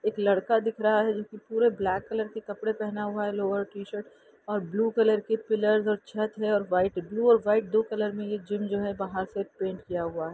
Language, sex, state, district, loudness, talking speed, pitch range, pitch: Hindi, female, Bihar, Saran, -28 LUFS, 245 wpm, 200-220 Hz, 210 Hz